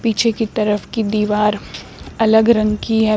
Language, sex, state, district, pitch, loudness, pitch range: Hindi, female, Uttar Pradesh, Shamli, 220 Hz, -17 LUFS, 210-225 Hz